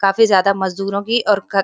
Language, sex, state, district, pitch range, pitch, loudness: Hindi, female, Uttarakhand, Uttarkashi, 195-205 Hz, 195 Hz, -16 LUFS